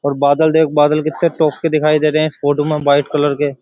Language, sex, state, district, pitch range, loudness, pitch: Hindi, male, Uttar Pradesh, Jyotiba Phule Nagar, 145-155 Hz, -14 LUFS, 150 Hz